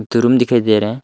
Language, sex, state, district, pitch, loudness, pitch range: Hindi, male, Arunachal Pradesh, Longding, 120 Hz, -14 LUFS, 110-125 Hz